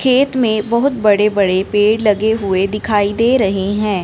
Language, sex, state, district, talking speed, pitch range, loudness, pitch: Hindi, female, Punjab, Fazilka, 180 wpm, 200-230 Hz, -15 LUFS, 210 Hz